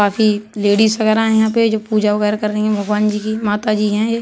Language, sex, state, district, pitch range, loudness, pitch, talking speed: Hindi, male, Uttar Pradesh, Budaun, 210-220 Hz, -16 LUFS, 215 Hz, 270 wpm